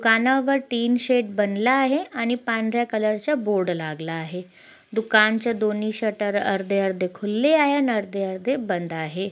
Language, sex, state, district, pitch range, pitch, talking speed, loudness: Marathi, female, Maharashtra, Chandrapur, 195-245 Hz, 215 Hz, 150 wpm, -22 LUFS